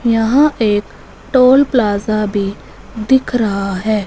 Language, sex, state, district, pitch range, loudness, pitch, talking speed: Hindi, male, Punjab, Fazilka, 205-255 Hz, -14 LUFS, 220 Hz, 120 wpm